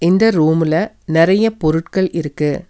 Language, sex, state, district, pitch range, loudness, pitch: Tamil, female, Tamil Nadu, Nilgiris, 160-190 Hz, -15 LUFS, 165 Hz